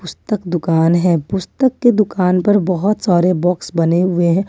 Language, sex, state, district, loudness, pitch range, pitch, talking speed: Hindi, female, Jharkhand, Ranchi, -15 LUFS, 175-200 Hz, 180 Hz, 185 wpm